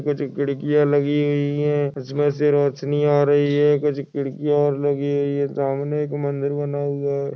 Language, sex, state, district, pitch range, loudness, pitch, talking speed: Hindi, male, Goa, North and South Goa, 140-145 Hz, -21 LUFS, 145 Hz, 180 wpm